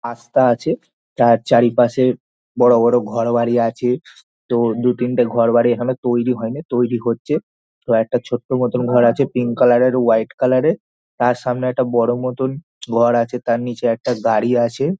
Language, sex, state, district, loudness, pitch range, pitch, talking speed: Bengali, male, West Bengal, Dakshin Dinajpur, -17 LUFS, 115-125 Hz, 120 Hz, 170 wpm